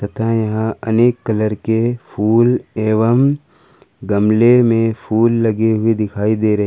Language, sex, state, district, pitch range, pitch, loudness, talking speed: Hindi, male, Jharkhand, Ranchi, 110-115 Hz, 110 Hz, -15 LUFS, 115 wpm